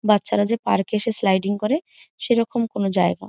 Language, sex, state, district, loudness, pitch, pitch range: Bengali, female, West Bengal, Jhargram, -21 LUFS, 215 Hz, 195-235 Hz